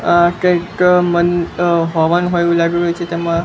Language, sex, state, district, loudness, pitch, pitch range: Gujarati, male, Gujarat, Gandhinagar, -14 LUFS, 175 Hz, 170-175 Hz